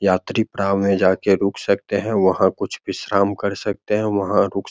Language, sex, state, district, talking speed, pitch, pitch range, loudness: Hindi, male, Bihar, Begusarai, 180 wpm, 100 Hz, 100-105 Hz, -20 LUFS